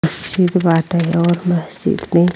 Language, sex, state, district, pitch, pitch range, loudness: Bhojpuri, female, Uttar Pradesh, Ghazipur, 170 Hz, 170-180 Hz, -16 LUFS